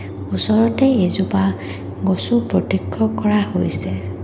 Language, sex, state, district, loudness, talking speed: Assamese, female, Assam, Kamrup Metropolitan, -17 LUFS, 85 wpm